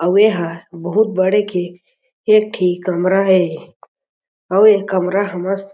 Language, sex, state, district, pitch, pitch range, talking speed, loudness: Chhattisgarhi, male, Chhattisgarh, Jashpur, 190 Hz, 180-205 Hz, 155 wpm, -16 LUFS